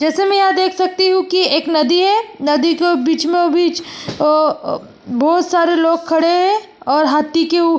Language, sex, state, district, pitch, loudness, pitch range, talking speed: Hindi, female, Maharashtra, Aurangabad, 335 Hz, -15 LUFS, 315-370 Hz, 190 wpm